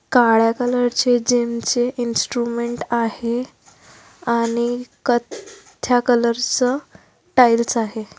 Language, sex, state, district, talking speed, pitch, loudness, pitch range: Marathi, female, Maharashtra, Dhule, 90 wpm, 240 Hz, -19 LUFS, 235-245 Hz